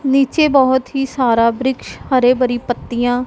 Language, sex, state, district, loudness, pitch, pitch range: Hindi, female, Punjab, Pathankot, -15 LUFS, 255 Hz, 245-270 Hz